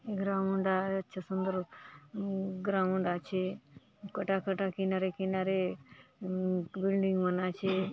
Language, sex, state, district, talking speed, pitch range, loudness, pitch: Halbi, female, Chhattisgarh, Bastar, 115 wpm, 185-195 Hz, -33 LUFS, 190 Hz